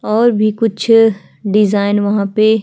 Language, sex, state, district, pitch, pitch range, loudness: Hindi, female, Chhattisgarh, Kabirdham, 215 Hz, 205-220 Hz, -13 LUFS